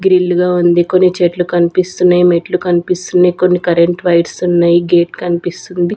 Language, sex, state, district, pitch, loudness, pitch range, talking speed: Telugu, female, Andhra Pradesh, Sri Satya Sai, 175 Hz, -12 LUFS, 175-180 Hz, 140 wpm